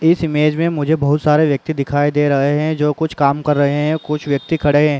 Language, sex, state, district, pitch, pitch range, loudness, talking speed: Hindi, male, Uttar Pradesh, Muzaffarnagar, 150 Hz, 145-155 Hz, -16 LUFS, 250 wpm